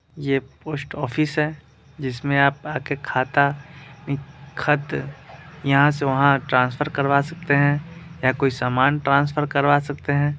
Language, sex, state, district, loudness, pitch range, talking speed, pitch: Hindi, male, Bihar, Muzaffarpur, -21 LUFS, 140-150 Hz, 140 wpm, 140 Hz